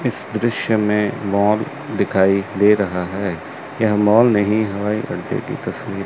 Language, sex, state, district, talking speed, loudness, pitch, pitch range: Hindi, male, Chandigarh, Chandigarh, 160 wpm, -18 LUFS, 105 Hz, 100-110 Hz